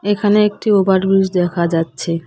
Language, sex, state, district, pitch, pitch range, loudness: Bengali, female, West Bengal, Cooch Behar, 190 Hz, 170-205 Hz, -15 LUFS